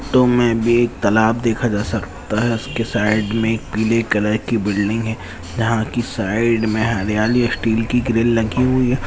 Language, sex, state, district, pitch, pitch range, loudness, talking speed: Hindi, male, West Bengal, Purulia, 115 Hz, 105-120 Hz, -18 LUFS, 170 wpm